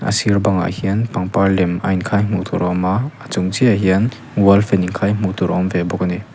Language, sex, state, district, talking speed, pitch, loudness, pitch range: Mizo, male, Mizoram, Aizawl, 255 wpm, 95 Hz, -17 LUFS, 90-105 Hz